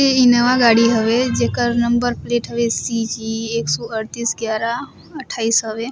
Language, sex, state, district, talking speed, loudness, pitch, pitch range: Surgujia, female, Chhattisgarh, Sarguja, 150 wpm, -18 LUFS, 230 Hz, 225-240 Hz